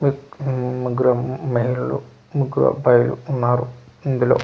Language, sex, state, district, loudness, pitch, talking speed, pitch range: Telugu, male, Andhra Pradesh, Manyam, -20 LUFS, 125 Hz, 120 wpm, 125-135 Hz